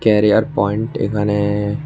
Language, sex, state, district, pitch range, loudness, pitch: Bengali, male, Tripura, West Tripura, 105-110 Hz, -17 LUFS, 105 Hz